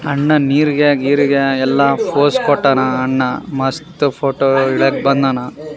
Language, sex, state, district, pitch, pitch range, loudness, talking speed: Kannada, male, Karnataka, Raichur, 140 Hz, 135-145 Hz, -14 LUFS, 85 wpm